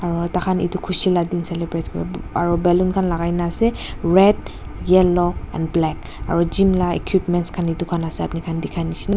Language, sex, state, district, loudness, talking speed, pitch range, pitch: Nagamese, female, Nagaland, Dimapur, -20 LUFS, 195 wpm, 170-185 Hz, 175 Hz